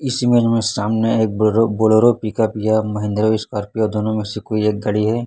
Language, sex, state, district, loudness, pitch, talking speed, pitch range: Hindi, male, Chhattisgarh, Raipur, -17 LUFS, 110 Hz, 205 wpm, 105-115 Hz